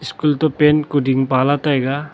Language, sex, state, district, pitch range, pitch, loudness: Wancho, male, Arunachal Pradesh, Longding, 135-150 Hz, 145 Hz, -16 LUFS